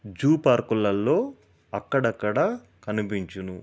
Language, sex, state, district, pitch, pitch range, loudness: Telugu, male, Telangana, Nalgonda, 105 Hz, 95-120 Hz, -25 LUFS